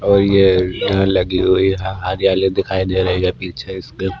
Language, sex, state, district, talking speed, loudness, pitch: Hindi, male, Maharashtra, Washim, 185 wpm, -16 LUFS, 95 Hz